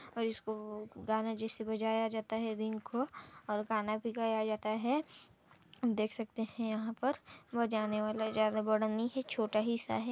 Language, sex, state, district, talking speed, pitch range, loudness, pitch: Hindi, female, Chhattisgarh, Balrampur, 180 wpm, 215-230 Hz, -36 LUFS, 220 Hz